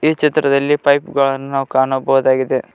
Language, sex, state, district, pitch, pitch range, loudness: Kannada, male, Karnataka, Koppal, 135 Hz, 135-145 Hz, -15 LUFS